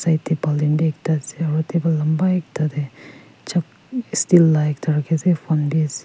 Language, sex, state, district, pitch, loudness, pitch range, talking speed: Nagamese, female, Nagaland, Kohima, 160 Hz, -20 LUFS, 150-170 Hz, 190 wpm